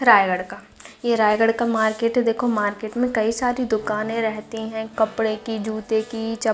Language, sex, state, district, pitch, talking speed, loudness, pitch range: Hindi, female, Chhattisgarh, Raigarh, 220 Hz, 185 wpm, -22 LUFS, 220-230 Hz